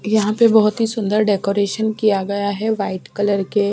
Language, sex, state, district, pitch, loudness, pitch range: Hindi, female, Bihar, West Champaran, 205 Hz, -18 LUFS, 200-220 Hz